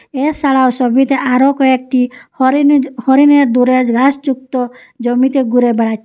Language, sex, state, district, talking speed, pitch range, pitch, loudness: Bengali, female, Assam, Hailakandi, 110 wpm, 250-275 Hz, 260 Hz, -12 LUFS